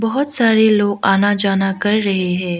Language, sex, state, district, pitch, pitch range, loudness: Hindi, female, Arunachal Pradesh, Lower Dibang Valley, 205 Hz, 195-220 Hz, -15 LUFS